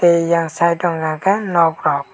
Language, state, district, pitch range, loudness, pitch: Kokborok, Tripura, West Tripura, 160-175 Hz, -17 LUFS, 170 Hz